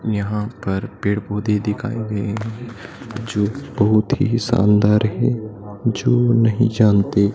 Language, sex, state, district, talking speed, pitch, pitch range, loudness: Hindi, male, Madhya Pradesh, Dhar, 115 wpm, 110 Hz, 105-120 Hz, -19 LUFS